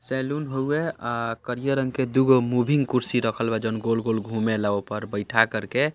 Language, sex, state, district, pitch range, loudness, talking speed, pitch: Bhojpuri, male, Bihar, East Champaran, 110-130 Hz, -24 LUFS, 190 wpm, 120 Hz